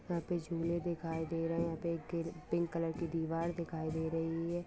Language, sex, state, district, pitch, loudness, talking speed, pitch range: Hindi, female, Bihar, Saharsa, 165 Hz, -38 LUFS, 245 wpm, 165-170 Hz